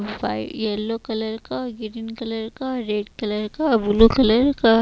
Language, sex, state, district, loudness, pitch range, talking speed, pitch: Hindi, female, Chhattisgarh, Raipur, -22 LUFS, 210-235 Hz, 185 wpm, 225 Hz